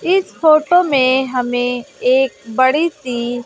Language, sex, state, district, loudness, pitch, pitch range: Hindi, female, Bihar, West Champaran, -15 LUFS, 260 Hz, 245-310 Hz